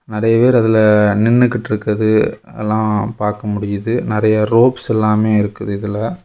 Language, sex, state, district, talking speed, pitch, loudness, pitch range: Tamil, male, Tamil Nadu, Kanyakumari, 115 wpm, 110 Hz, -15 LUFS, 105-115 Hz